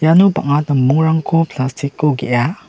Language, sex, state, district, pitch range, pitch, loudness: Garo, male, Meghalaya, West Garo Hills, 135-160 Hz, 150 Hz, -15 LUFS